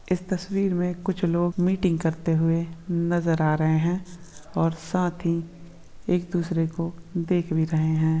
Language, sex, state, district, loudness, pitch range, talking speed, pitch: Hindi, male, Andhra Pradesh, Krishna, -25 LUFS, 165-180 Hz, 160 wpm, 170 Hz